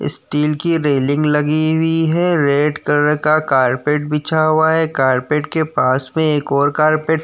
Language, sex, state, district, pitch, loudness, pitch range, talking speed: Hindi, male, Uttar Pradesh, Jyotiba Phule Nagar, 150 Hz, -15 LUFS, 145-160 Hz, 175 wpm